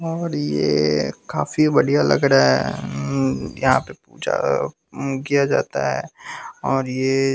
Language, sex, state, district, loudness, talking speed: Hindi, male, Bihar, West Champaran, -20 LUFS, 140 wpm